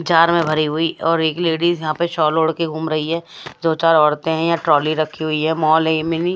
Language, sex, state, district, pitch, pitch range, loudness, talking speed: Hindi, female, Odisha, Malkangiri, 160 Hz, 155-165 Hz, -17 LUFS, 265 wpm